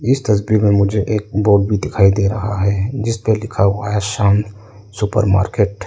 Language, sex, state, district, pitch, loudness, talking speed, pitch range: Hindi, male, Arunachal Pradesh, Lower Dibang Valley, 105 Hz, -16 LUFS, 195 wpm, 100-110 Hz